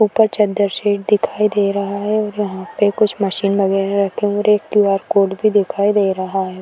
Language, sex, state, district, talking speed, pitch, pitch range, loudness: Hindi, female, Uttar Pradesh, Varanasi, 190 wpm, 205 Hz, 195-210 Hz, -17 LUFS